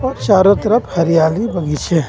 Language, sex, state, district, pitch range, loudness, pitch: Hindi, male, Jharkhand, Ranchi, 165-215 Hz, -14 LUFS, 180 Hz